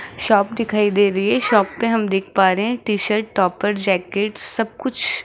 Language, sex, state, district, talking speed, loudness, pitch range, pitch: Hindi, female, Rajasthan, Jaipur, 205 wpm, -19 LUFS, 200-230 Hz, 210 Hz